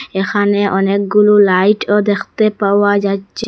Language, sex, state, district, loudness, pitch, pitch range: Bengali, female, Assam, Hailakandi, -13 LUFS, 205 Hz, 200-210 Hz